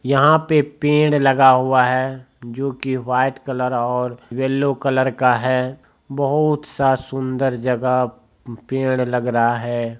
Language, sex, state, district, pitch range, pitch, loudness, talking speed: Hindi, male, Bihar, Bhagalpur, 125-135 Hz, 130 Hz, -18 LUFS, 140 wpm